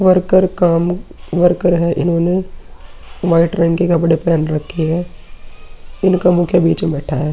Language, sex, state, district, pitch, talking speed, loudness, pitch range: Hindi, male, Uttar Pradesh, Muzaffarnagar, 170 Hz, 145 wpm, -15 LUFS, 160-180 Hz